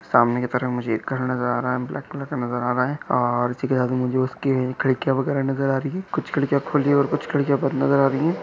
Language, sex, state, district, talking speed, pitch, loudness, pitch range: Hindi, male, Maharashtra, Chandrapur, 285 wpm, 130 Hz, -22 LUFS, 125-140 Hz